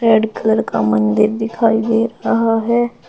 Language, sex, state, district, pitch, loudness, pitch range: Hindi, female, Uttar Pradesh, Shamli, 225 Hz, -16 LUFS, 220-230 Hz